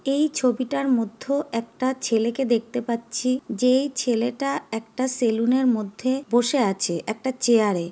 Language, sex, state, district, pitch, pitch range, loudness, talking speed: Bengali, female, West Bengal, Jhargram, 245 Hz, 230-260 Hz, -23 LUFS, 145 wpm